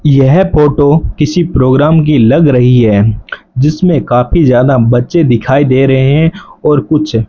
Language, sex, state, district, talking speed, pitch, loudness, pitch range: Hindi, male, Rajasthan, Bikaner, 155 wpm, 140 Hz, -9 LUFS, 125-155 Hz